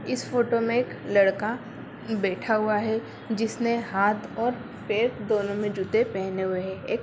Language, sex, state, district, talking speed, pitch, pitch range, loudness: Hindi, female, Bihar, Jahanabad, 170 wpm, 220 Hz, 200-235 Hz, -26 LUFS